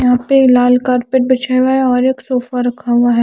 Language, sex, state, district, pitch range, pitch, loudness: Hindi, female, Chandigarh, Chandigarh, 245-260 Hz, 250 Hz, -13 LUFS